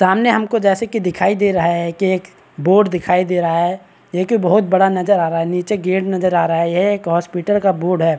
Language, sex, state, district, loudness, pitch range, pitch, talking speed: Hindi, male, Bihar, Araria, -16 LUFS, 175-195 Hz, 185 Hz, 280 wpm